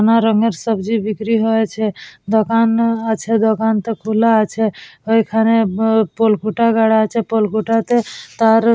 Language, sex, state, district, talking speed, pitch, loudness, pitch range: Bengali, female, West Bengal, Purulia, 115 wpm, 225 Hz, -16 LUFS, 220-225 Hz